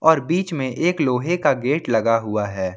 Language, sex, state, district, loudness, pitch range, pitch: Hindi, male, Jharkhand, Ranchi, -20 LUFS, 110-160 Hz, 130 Hz